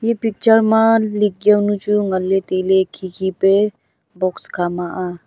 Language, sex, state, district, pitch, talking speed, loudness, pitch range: Wancho, female, Arunachal Pradesh, Longding, 195 Hz, 160 wpm, -17 LUFS, 185-210 Hz